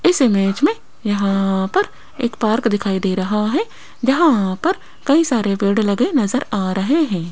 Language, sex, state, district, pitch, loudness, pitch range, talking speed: Hindi, female, Rajasthan, Jaipur, 215 Hz, -18 LUFS, 195-280 Hz, 165 wpm